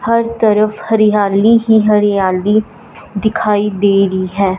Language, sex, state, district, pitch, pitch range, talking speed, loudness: Hindi, male, Punjab, Fazilka, 210 Hz, 200-220 Hz, 115 wpm, -13 LUFS